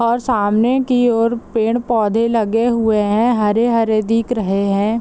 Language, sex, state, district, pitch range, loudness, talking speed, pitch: Hindi, female, Bihar, Muzaffarpur, 215-235 Hz, -16 LUFS, 145 wpm, 230 Hz